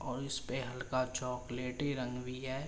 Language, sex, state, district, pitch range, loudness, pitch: Hindi, male, Uttar Pradesh, Jalaun, 125-130 Hz, -38 LUFS, 130 Hz